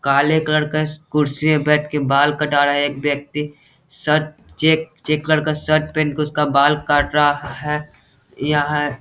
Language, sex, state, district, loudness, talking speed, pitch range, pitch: Hindi, male, Bihar, Saharsa, -18 LUFS, 185 wpm, 145-155 Hz, 150 Hz